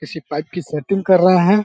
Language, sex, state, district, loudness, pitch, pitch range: Hindi, male, Uttar Pradesh, Deoria, -17 LUFS, 175 Hz, 150-190 Hz